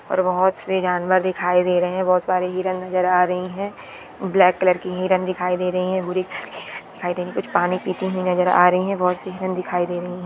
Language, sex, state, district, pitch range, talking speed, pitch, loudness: Hindi, female, West Bengal, Purulia, 180-185 Hz, 245 wpm, 185 Hz, -20 LUFS